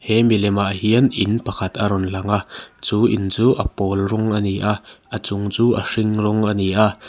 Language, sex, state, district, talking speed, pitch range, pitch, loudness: Mizo, male, Mizoram, Aizawl, 220 wpm, 100-110 Hz, 105 Hz, -19 LUFS